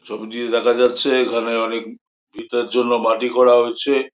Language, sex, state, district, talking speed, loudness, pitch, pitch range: Bengali, male, West Bengal, Jhargram, 160 wpm, -18 LUFS, 120 Hz, 115-125 Hz